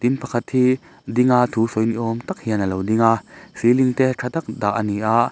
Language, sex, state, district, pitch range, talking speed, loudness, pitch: Mizo, male, Mizoram, Aizawl, 110-125 Hz, 250 wpm, -20 LUFS, 120 Hz